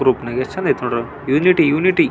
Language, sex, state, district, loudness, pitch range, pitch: Kannada, male, Karnataka, Belgaum, -17 LUFS, 125-160 Hz, 135 Hz